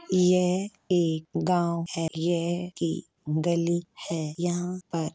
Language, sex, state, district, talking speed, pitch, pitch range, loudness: Hindi, male, Uttar Pradesh, Hamirpur, 130 wpm, 170 Hz, 165-180 Hz, -27 LUFS